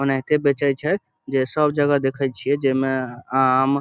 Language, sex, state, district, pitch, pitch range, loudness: Maithili, male, Bihar, Samastipur, 135 Hz, 130-145 Hz, -21 LUFS